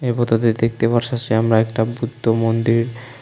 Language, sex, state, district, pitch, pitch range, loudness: Bengali, male, Tripura, West Tripura, 115 Hz, 115-120 Hz, -18 LUFS